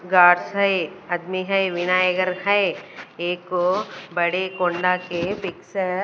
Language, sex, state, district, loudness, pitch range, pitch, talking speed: Hindi, female, Chhattisgarh, Raipur, -21 LUFS, 175-190 Hz, 185 Hz, 120 wpm